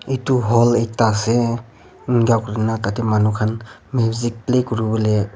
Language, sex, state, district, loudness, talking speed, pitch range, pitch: Nagamese, male, Nagaland, Kohima, -19 LUFS, 135 wpm, 110-120 Hz, 115 Hz